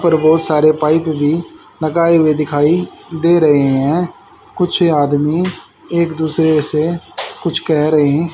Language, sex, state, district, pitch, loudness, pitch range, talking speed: Hindi, male, Haryana, Jhajjar, 160 Hz, -14 LUFS, 150-170 Hz, 135 wpm